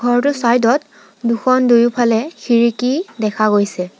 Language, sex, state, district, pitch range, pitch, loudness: Assamese, female, Assam, Sonitpur, 220-245 Hz, 235 Hz, -15 LUFS